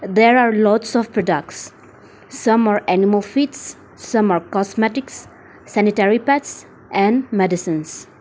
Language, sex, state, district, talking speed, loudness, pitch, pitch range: English, female, Nagaland, Dimapur, 115 wpm, -17 LUFS, 210 Hz, 195-235 Hz